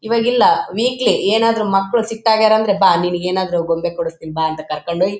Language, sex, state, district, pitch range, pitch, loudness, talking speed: Kannada, male, Karnataka, Bellary, 170-225 Hz, 195 Hz, -16 LUFS, 195 wpm